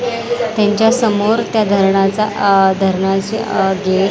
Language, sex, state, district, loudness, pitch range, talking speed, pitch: Marathi, female, Maharashtra, Mumbai Suburban, -14 LUFS, 195-225 Hz, 115 wpm, 205 Hz